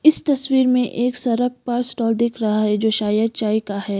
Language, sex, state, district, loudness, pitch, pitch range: Hindi, female, Sikkim, Gangtok, -19 LUFS, 235 Hz, 215-250 Hz